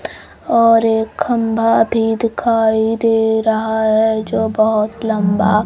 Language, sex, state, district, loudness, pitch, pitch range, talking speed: Hindi, female, Bihar, Kaimur, -15 LUFS, 220 Hz, 220-225 Hz, 115 wpm